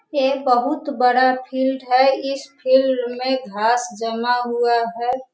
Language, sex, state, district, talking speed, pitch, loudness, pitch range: Hindi, female, Bihar, Sitamarhi, 135 wpm, 255 Hz, -19 LUFS, 245-265 Hz